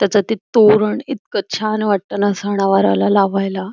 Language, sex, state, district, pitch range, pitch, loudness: Marathi, female, Karnataka, Belgaum, 195-210 Hz, 205 Hz, -16 LUFS